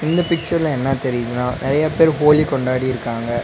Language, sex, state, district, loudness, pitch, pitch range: Tamil, male, Tamil Nadu, Nilgiris, -18 LUFS, 135 Hz, 125-155 Hz